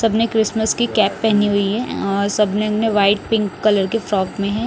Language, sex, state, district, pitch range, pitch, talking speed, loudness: Hindi, male, Odisha, Nuapada, 200-225 Hz, 210 Hz, 220 wpm, -18 LUFS